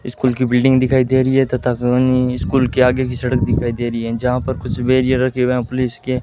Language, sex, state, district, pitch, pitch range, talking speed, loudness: Hindi, male, Rajasthan, Bikaner, 125 Hz, 125-130 Hz, 260 wpm, -17 LUFS